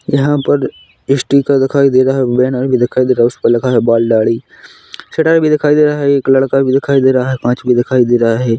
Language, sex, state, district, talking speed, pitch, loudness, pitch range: Hindi, male, Chhattisgarh, Korba, 265 wpm, 130 Hz, -12 LUFS, 120-140 Hz